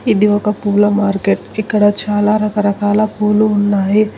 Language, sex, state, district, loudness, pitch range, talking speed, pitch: Telugu, female, Telangana, Hyderabad, -14 LUFS, 205-210 Hz, 130 wpm, 205 Hz